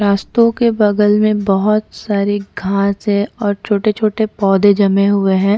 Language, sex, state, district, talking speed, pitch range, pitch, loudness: Hindi, female, Chhattisgarh, Bastar, 150 wpm, 200-215 Hz, 205 Hz, -14 LUFS